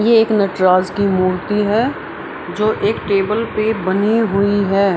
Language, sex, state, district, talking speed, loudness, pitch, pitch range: Hindi, female, Bihar, Araria, 155 wpm, -16 LUFS, 205 Hz, 195-220 Hz